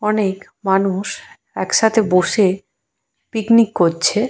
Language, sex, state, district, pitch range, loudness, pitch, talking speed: Bengali, female, West Bengal, Purulia, 190-220 Hz, -17 LUFS, 200 Hz, 85 wpm